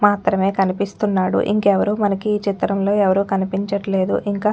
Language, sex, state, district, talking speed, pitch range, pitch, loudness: Telugu, female, Telangana, Nalgonda, 80 wpm, 195-205 Hz, 200 Hz, -19 LUFS